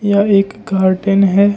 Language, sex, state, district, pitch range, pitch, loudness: Hindi, male, Jharkhand, Ranchi, 195-205 Hz, 200 Hz, -13 LUFS